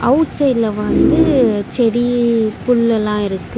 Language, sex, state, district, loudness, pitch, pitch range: Tamil, female, Tamil Nadu, Chennai, -15 LUFS, 235 Hz, 215-250 Hz